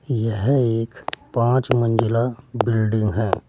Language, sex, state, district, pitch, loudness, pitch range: Hindi, male, Uttar Pradesh, Saharanpur, 115 Hz, -21 LUFS, 115-125 Hz